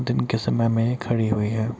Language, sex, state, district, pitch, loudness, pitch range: Hindi, male, Bihar, Kishanganj, 115 Hz, -23 LUFS, 110-115 Hz